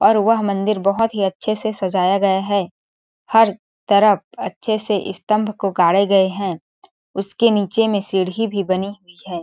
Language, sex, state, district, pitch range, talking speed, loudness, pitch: Hindi, female, Chhattisgarh, Balrampur, 195-215 Hz, 170 wpm, -18 LUFS, 200 Hz